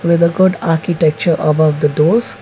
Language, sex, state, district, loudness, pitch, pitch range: English, male, Karnataka, Bangalore, -13 LUFS, 165 Hz, 155-175 Hz